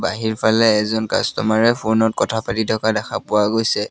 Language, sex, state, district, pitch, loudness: Assamese, male, Assam, Sonitpur, 110 Hz, -18 LUFS